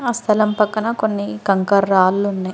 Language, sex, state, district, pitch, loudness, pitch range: Telugu, female, Andhra Pradesh, Guntur, 200 Hz, -17 LUFS, 195-215 Hz